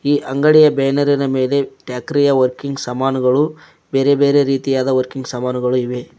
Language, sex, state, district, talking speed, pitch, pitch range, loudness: Kannada, male, Karnataka, Koppal, 145 wpm, 135 Hz, 130-145 Hz, -16 LUFS